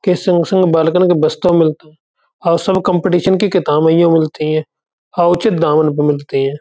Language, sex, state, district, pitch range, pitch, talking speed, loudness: Hindi, male, Uttar Pradesh, Budaun, 155-180 Hz, 170 Hz, 200 wpm, -13 LUFS